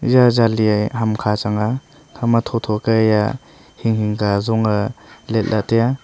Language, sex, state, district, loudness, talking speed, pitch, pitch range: Wancho, male, Arunachal Pradesh, Longding, -18 LUFS, 160 wpm, 110 Hz, 105-120 Hz